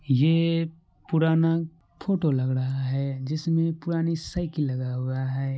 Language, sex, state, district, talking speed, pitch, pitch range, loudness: Maithili, male, Bihar, Supaul, 130 wpm, 155 Hz, 135-165 Hz, -26 LUFS